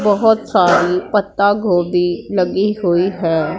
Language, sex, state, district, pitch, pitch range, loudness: Hindi, female, Punjab, Pathankot, 185 Hz, 175-205 Hz, -15 LUFS